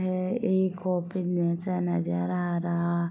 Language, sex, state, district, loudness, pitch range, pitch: Hindi, female, Uttar Pradesh, Muzaffarnagar, -28 LUFS, 170-185 Hz, 175 Hz